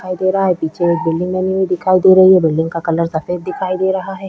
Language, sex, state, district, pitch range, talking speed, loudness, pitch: Hindi, female, Chhattisgarh, Korba, 170-190 Hz, 295 wpm, -15 LUFS, 185 Hz